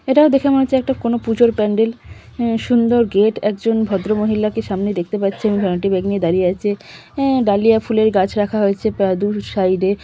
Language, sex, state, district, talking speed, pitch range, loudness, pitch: Bengali, female, West Bengal, Malda, 195 wpm, 195-230 Hz, -17 LUFS, 215 Hz